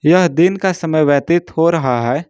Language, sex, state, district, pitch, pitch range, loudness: Hindi, male, Jharkhand, Ranchi, 165 Hz, 145-175 Hz, -14 LUFS